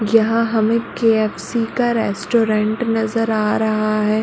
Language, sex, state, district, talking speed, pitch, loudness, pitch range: Hindi, female, Uttar Pradesh, Muzaffarnagar, 130 wpm, 220 Hz, -18 LUFS, 215-230 Hz